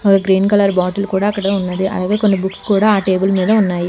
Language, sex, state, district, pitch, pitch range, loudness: Telugu, female, Telangana, Hyderabad, 195 Hz, 190-200 Hz, -15 LUFS